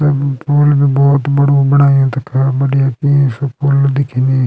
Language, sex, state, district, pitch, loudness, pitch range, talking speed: Garhwali, male, Uttarakhand, Uttarkashi, 140 Hz, -12 LUFS, 135-140 Hz, 135 wpm